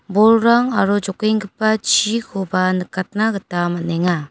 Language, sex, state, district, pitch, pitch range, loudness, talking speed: Garo, female, Meghalaya, West Garo Hills, 200 Hz, 185-220 Hz, -17 LUFS, 95 wpm